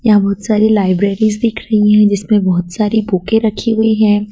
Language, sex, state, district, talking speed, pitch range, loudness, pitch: Hindi, female, Madhya Pradesh, Dhar, 195 wpm, 200-220 Hz, -13 LUFS, 210 Hz